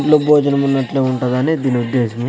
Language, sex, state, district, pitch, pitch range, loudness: Telugu, male, Andhra Pradesh, Sri Satya Sai, 135 Hz, 125-145 Hz, -16 LUFS